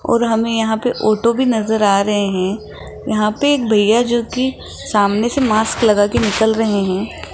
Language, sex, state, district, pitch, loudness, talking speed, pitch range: Hindi, female, Rajasthan, Jaipur, 220 Hz, -16 LUFS, 190 wpm, 210-235 Hz